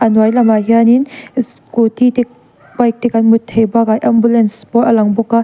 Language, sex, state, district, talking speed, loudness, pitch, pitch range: Mizo, female, Mizoram, Aizawl, 185 wpm, -12 LUFS, 230 Hz, 225-235 Hz